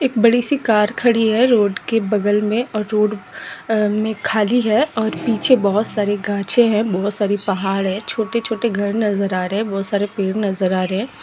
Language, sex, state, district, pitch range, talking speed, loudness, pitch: Kumaoni, female, Uttarakhand, Tehri Garhwal, 200-225 Hz, 210 wpm, -18 LUFS, 210 Hz